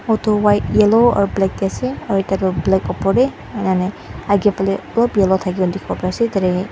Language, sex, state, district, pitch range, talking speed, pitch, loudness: Nagamese, female, Mizoram, Aizawl, 190-215 Hz, 195 wpm, 195 Hz, -17 LUFS